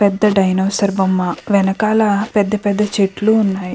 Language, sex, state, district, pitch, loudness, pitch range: Telugu, female, Andhra Pradesh, Krishna, 200 Hz, -15 LUFS, 195-210 Hz